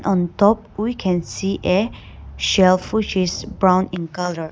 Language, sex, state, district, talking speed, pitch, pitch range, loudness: English, female, Nagaland, Dimapur, 160 wpm, 185 Hz, 175-195 Hz, -19 LUFS